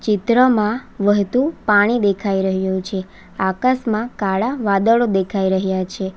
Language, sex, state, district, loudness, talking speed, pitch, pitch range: Gujarati, female, Gujarat, Valsad, -18 LUFS, 115 wpm, 205 Hz, 190-230 Hz